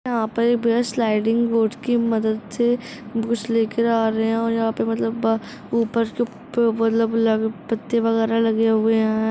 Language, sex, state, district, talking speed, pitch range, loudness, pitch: Hindi, female, Uttar Pradesh, Gorakhpur, 140 wpm, 220-235 Hz, -21 LUFS, 225 Hz